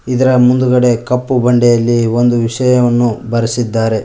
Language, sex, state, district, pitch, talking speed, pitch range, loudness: Kannada, male, Karnataka, Koppal, 120 Hz, 105 wpm, 115-125 Hz, -12 LUFS